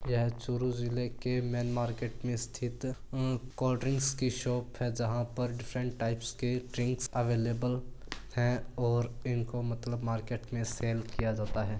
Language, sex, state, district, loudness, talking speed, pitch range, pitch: Hindi, male, Rajasthan, Churu, -34 LUFS, 145 wpm, 120-125 Hz, 120 Hz